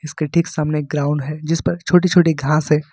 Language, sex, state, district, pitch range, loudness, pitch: Hindi, male, Jharkhand, Ranchi, 150-165 Hz, -18 LUFS, 155 Hz